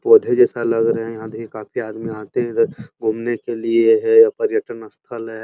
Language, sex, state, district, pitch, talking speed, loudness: Hindi, male, Uttar Pradesh, Muzaffarnagar, 115 Hz, 200 wpm, -18 LUFS